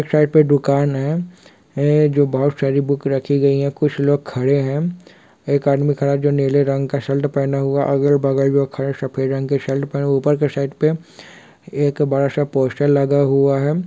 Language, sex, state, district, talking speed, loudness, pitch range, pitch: Hindi, male, Bihar, Kishanganj, 200 wpm, -18 LUFS, 140-145 Hz, 140 Hz